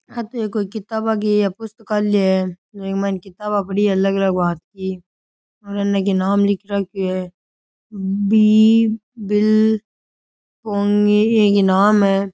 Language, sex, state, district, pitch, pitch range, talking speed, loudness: Rajasthani, male, Rajasthan, Nagaur, 200 Hz, 195-215 Hz, 140 wpm, -18 LUFS